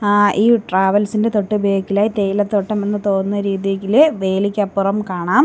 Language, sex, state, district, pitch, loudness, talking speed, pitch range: Malayalam, female, Kerala, Kollam, 205 Hz, -17 LUFS, 165 wpm, 195-210 Hz